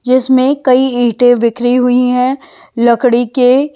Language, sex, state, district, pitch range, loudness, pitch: Hindi, female, Haryana, Jhajjar, 245-260 Hz, -11 LUFS, 250 Hz